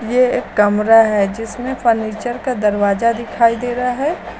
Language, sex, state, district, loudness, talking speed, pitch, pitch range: Hindi, female, Uttar Pradesh, Lucknow, -16 LUFS, 165 wpm, 230 Hz, 215-250 Hz